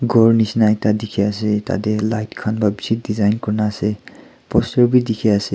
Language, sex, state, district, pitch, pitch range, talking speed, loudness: Nagamese, male, Nagaland, Kohima, 110 Hz, 105-115 Hz, 195 wpm, -18 LUFS